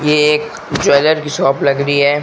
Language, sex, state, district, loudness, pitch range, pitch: Hindi, male, Rajasthan, Bikaner, -14 LUFS, 140-150 Hz, 150 Hz